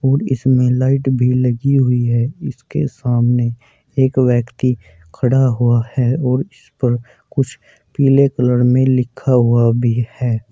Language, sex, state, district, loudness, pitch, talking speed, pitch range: Hindi, male, Uttar Pradesh, Saharanpur, -16 LUFS, 125 Hz, 145 wpm, 120-130 Hz